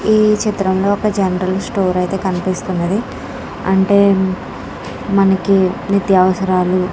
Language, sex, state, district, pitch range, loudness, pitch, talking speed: Telugu, female, Andhra Pradesh, Krishna, 185-200 Hz, -15 LUFS, 190 Hz, 105 wpm